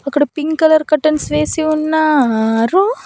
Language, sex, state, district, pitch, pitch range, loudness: Telugu, female, Andhra Pradesh, Annamaya, 305 Hz, 280-315 Hz, -14 LUFS